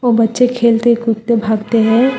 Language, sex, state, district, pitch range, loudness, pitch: Hindi, female, Telangana, Hyderabad, 225-240 Hz, -13 LUFS, 235 Hz